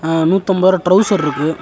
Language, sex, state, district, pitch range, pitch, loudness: Tamil, male, Tamil Nadu, Nilgiris, 160-190 Hz, 185 Hz, -14 LUFS